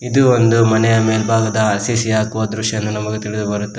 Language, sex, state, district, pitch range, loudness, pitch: Kannada, male, Karnataka, Koppal, 110-115 Hz, -16 LUFS, 110 Hz